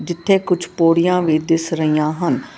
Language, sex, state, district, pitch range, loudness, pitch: Punjabi, female, Karnataka, Bangalore, 160-175 Hz, -17 LUFS, 165 Hz